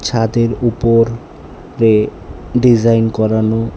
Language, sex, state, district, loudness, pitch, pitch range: Bengali, male, Tripura, West Tripura, -14 LUFS, 115 Hz, 110-120 Hz